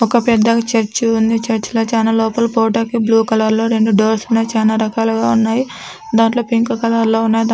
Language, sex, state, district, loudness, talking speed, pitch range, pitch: Telugu, female, Andhra Pradesh, Anantapur, -15 LUFS, 175 wpm, 225-230 Hz, 225 Hz